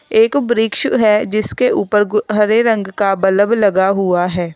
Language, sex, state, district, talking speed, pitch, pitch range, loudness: Hindi, female, Uttar Pradesh, Lalitpur, 170 wpm, 210 Hz, 195-225 Hz, -14 LUFS